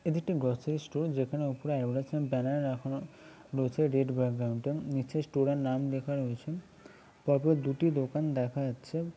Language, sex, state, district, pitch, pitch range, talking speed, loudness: Bengali, male, West Bengal, Kolkata, 140 Hz, 130-155 Hz, 185 wpm, -32 LUFS